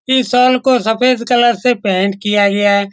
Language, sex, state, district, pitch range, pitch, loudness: Hindi, male, Bihar, Saran, 205-250 Hz, 240 Hz, -13 LUFS